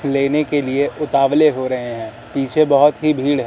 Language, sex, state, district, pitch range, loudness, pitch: Hindi, male, Madhya Pradesh, Katni, 135-150 Hz, -17 LUFS, 140 Hz